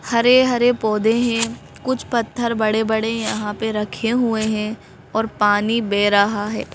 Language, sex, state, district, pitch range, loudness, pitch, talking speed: Hindi, female, Madhya Pradesh, Bhopal, 215-235 Hz, -19 LUFS, 220 Hz, 140 wpm